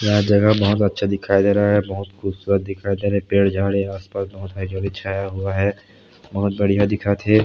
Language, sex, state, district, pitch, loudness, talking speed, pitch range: Chhattisgarhi, male, Chhattisgarh, Sarguja, 100 Hz, -20 LUFS, 225 wpm, 95-100 Hz